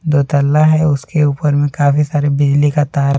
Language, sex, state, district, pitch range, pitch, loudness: Hindi, male, Jharkhand, Deoghar, 140-150 Hz, 145 Hz, -13 LUFS